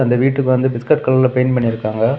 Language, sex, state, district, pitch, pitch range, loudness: Tamil, male, Tamil Nadu, Kanyakumari, 130 Hz, 120-130 Hz, -16 LUFS